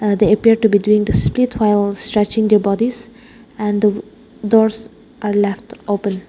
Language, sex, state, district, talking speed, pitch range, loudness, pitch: English, female, Nagaland, Dimapur, 170 wpm, 205-230 Hz, -16 LUFS, 215 Hz